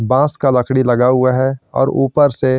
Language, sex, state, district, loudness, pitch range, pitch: Hindi, male, Chandigarh, Chandigarh, -14 LUFS, 130-135 Hz, 130 Hz